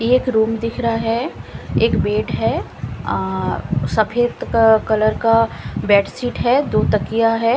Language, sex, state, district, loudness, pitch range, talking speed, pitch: Hindi, female, Punjab, Fazilka, -18 LUFS, 220-240 Hz, 140 wpm, 225 Hz